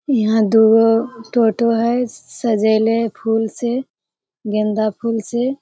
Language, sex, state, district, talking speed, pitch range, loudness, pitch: Hindi, female, Bihar, Jamui, 130 wpm, 220-235 Hz, -17 LUFS, 225 Hz